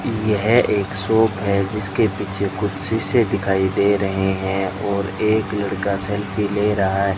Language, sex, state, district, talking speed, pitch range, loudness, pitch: Hindi, male, Rajasthan, Bikaner, 160 wpm, 95-105 Hz, -20 LUFS, 100 Hz